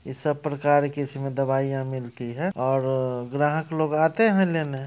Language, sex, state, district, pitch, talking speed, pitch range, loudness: Hindi, male, Bihar, Muzaffarpur, 140 Hz, 170 wpm, 135-155 Hz, -24 LUFS